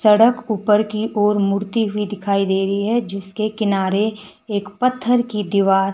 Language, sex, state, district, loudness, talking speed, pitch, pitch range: Hindi, male, Himachal Pradesh, Shimla, -19 LUFS, 160 wpm, 210 Hz, 200-220 Hz